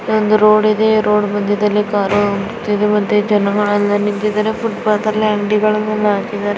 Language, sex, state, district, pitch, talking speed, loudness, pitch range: Kannada, female, Karnataka, Bijapur, 210 Hz, 135 wpm, -15 LUFS, 205-215 Hz